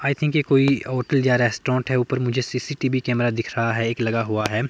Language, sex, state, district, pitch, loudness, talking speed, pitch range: Hindi, male, Himachal Pradesh, Shimla, 125 Hz, -21 LUFS, 240 wpm, 115-135 Hz